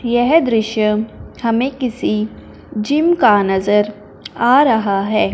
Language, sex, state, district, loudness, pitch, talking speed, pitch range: Hindi, female, Punjab, Fazilka, -15 LUFS, 220 Hz, 110 wpm, 205-245 Hz